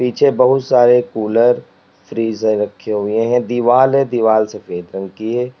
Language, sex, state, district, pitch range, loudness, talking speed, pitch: Hindi, male, Uttar Pradesh, Lalitpur, 110-125 Hz, -15 LUFS, 160 wpm, 120 Hz